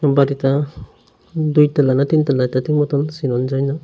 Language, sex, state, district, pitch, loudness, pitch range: Bengali, male, Tripura, Unakoti, 140 Hz, -17 LUFS, 135-150 Hz